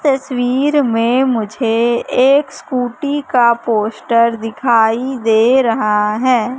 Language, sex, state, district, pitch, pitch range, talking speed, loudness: Hindi, female, Madhya Pradesh, Katni, 240 Hz, 225-265 Hz, 100 wpm, -14 LUFS